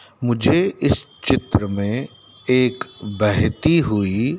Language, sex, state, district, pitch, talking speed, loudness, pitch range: Hindi, male, Madhya Pradesh, Dhar, 115 Hz, 95 wpm, -19 LUFS, 105-125 Hz